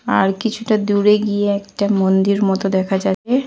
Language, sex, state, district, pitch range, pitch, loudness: Bengali, female, Jharkhand, Jamtara, 195-210 Hz, 200 Hz, -17 LUFS